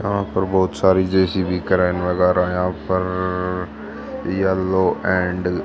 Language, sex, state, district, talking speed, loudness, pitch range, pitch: Hindi, female, Haryana, Charkhi Dadri, 140 wpm, -19 LUFS, 90-95 Hz, 90 Hz